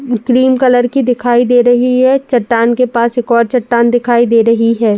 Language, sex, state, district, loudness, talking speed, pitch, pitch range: Hindi, female, Uttar Pradesh, Jalaun, -11 LUFS, 205 wpm, 245 Hz, 235-250 Hz